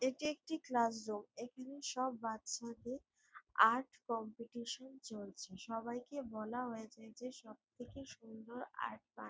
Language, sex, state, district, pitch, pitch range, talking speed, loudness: Bengali, female, West Bengal, Jalpaiguri, 235 Hz, 225-255 Hz, 110 wpm, -42 LUFS